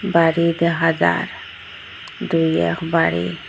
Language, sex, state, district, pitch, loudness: Bengali, female, Assam, Hailakandi, 125 Hz, -18 LUFS